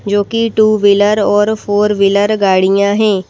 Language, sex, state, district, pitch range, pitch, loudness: Hindi, female, Madhya Pradesh, Bhopal, 200-215 Hz, 205 Hz, -12 LUFS